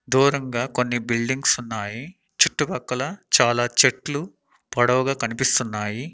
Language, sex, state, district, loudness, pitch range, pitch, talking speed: Telugu, male, Andhra Pradesh, Annamaya, -21 LUFS, 120-140 Hz, 125 Hz, 100 wpm